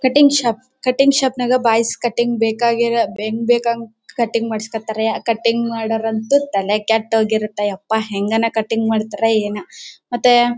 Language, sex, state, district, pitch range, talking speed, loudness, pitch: Kannada, female, Karnataka, Bellary, 220-240 Hz, 145 wpm, -17 LUFS, 225 Hz